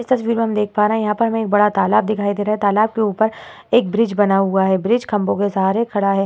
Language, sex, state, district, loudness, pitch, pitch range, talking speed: Hindi, female, Uttar Pradesh, Hamirpur, -17 LUFS, 210 Hz, 200-225 Hz, 305 wpm